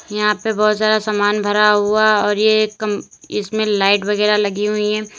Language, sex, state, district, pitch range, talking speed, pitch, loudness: Hindi, female, Uttar Pradesh, Lalitpur, 210-215 Hz, 185 wpm, 210 Hz, -16 LUFS